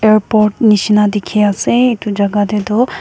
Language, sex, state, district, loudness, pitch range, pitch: Nagamese, female, Nagaland, Kohima, -13 LUFS, 205-220 Hz, 210 Hz